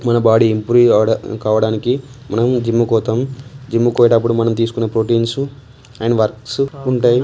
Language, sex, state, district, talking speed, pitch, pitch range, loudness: Telugu, male, Telangana, Karimnagar, 135 wpm, 115 Hz, 115-125 Hz, -16 LUFS